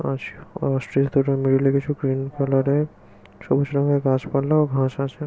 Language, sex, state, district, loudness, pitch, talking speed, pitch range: Bengali, male, West Bengal, Kolkata, -22 LUFS, 135 Hz, 125 wpm, 135-140 Hz